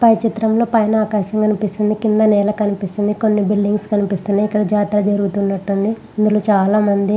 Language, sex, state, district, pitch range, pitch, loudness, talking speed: Telugu, female, Andhra Pradesh, Visakhapatnam, 205-215 Hz, 210 Hz, -16 LUFS, 125 wpm